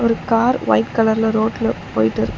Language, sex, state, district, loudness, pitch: Tamil, female, Tamil Nadu, Chennai, -17 LUFS, 220 Hz